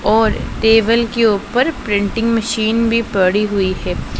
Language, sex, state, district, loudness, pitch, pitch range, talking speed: Hindi, female, Punjab, Pathankot, -15 LUFS, 220 Hz, 205-230 Hz, 145 wpm